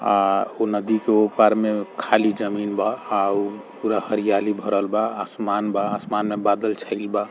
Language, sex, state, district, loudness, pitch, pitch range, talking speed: Bhojpuri, male, Bihar, East Champaran, -22 LUFS, 105 Hz, 100-110 Hz, 180 wpm